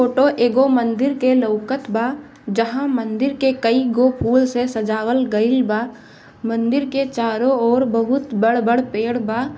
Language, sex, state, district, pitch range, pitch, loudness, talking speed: Bhojpuri, female, Bihar, Gopalganj, 230-260 Hz, 245 Hz, -18 LUFS, 155 wpm